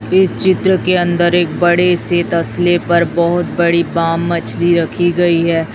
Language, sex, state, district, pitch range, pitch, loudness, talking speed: Hindi, female, Chhattisgarh, Raipur, 170-175 Hz, 175 Hz, -14 LUFS, 165 wpm